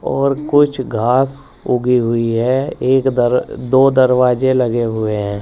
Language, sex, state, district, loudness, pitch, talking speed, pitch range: Hindi, male, Uttar Pradesh, Saharanpur, -15 LUFS, 125 Hz, 145 wpm, 120-135 Hz